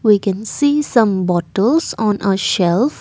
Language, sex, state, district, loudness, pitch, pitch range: English, female, Assam, Kamrup Metropolitan, -16 LUFS, 210 Hz, 190-245 Hz